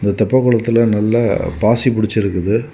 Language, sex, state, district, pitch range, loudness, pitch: Tamil, male, Tamil Nadu, Kanyakumari, 105-120 Hz, -15 LUFS, 110 Hz